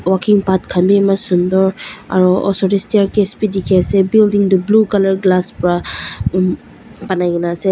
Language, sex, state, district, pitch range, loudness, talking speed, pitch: Nagamese, female, Nagaland, Dimapur, 185-200 Hz, -14 LUFS, 170 wpm, 190 Hz